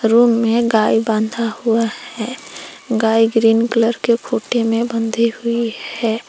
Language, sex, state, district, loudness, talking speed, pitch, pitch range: Hindi, female, Jharkhand, Palamu, -17 LUFS, 145 wpm, 230 Hz, 225-235 Hz